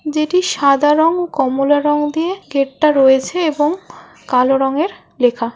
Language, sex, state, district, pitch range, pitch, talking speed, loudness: Bengali, female, West Bengal, Jhargram, 270-320 Hz, 295 Hz, 150 wpm, -15 LUFS